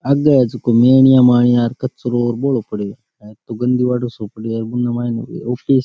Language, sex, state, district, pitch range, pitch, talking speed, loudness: Rajasthani, male, Rajasthan, Nagaur, 115-125 Hz, 120 Hz, 115 wpm, -15 LUFS